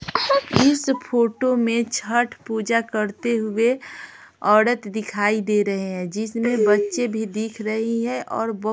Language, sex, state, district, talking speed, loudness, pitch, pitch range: Hindi, female, Bihar, Patna, 140 wpm, -21 LUFS, 225 Hz, 215-240 Hz